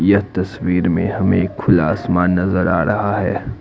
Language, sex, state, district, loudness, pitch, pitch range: Hindi, male, Assam, Kamrup Metropolitan, -17 LUFS, 95 Hz, 90-100 Hz